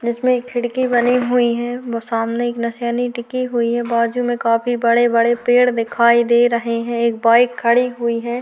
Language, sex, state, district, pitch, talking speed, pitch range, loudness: Hindi, female, Chhattisgarh, Korba, 240 Hz, 200 wpm, 235-245 Hz, -17 LUFS